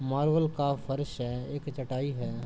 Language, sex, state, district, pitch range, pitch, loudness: Hindi, male, Uttar Pradesh, Jalaun, 130-145 Hz, 140 Hz, -31 LUFS